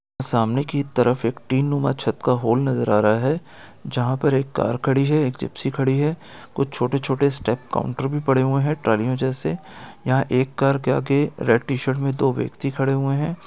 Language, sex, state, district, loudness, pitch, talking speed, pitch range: Hindi, male, Chhattisgarh, Raigarh, -21 LUFS, 135 Hz, 215 wpm, 125-140 Hz